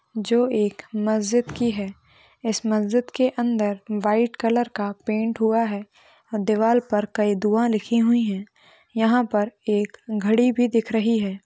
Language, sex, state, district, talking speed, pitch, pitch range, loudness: Hindi, female, Maharashtra, Nagpur, 155 wpm, 220 Hz, 210-235 Hz, -22 LUFS